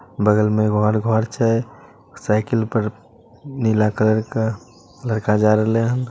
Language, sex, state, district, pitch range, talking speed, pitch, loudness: Magahi, male, Bihar, Samastipur, 105-115 Hz, 145 wpm, 110 Hz, -19 LUFS